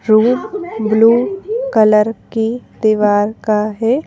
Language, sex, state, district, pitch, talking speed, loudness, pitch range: Hindi, female, Madhya Pradesh, Bhopal, 225 Hz, 105 wpm, -15 LUFS, 215-250 Hz